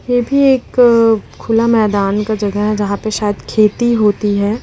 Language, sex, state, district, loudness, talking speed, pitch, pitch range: Hindi, female, Bihar, Lakhisarai, -14 LUFS, 180 wpm, 215 Hz, 205-235 Hz